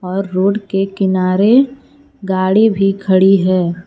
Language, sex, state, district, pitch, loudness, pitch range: Hindi, female, Jharkhand, Palamu, 195 Hz, -14 LUFS, 185-210 Hz